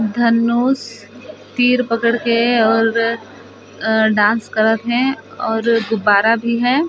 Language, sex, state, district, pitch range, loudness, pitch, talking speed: Chhattisgarhi, female, Chhattisgarh, Sarguja, 225-240 Hz, -16 LUFS, 230 Hz, 115 wpm